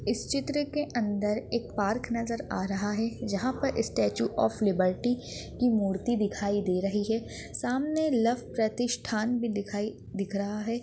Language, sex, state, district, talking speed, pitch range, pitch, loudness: Hindi, female, Maharashtra, Aurangabad, 165 wpm, 205-245 Hz, 225 Hz, -29 LUFS